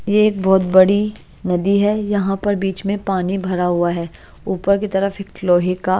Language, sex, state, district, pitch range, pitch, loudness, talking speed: Hindi, female, Chhattisgarh, Raipur, 180-200 Hz, 195 Hz, -18 LUFS, 200 wpm